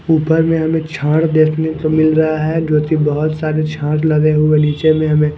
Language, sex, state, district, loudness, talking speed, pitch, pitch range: Hindi, male, Punjab, Kapurthala, -14 LUFS, 200 wpm, 155 Hz, 150-160 Hz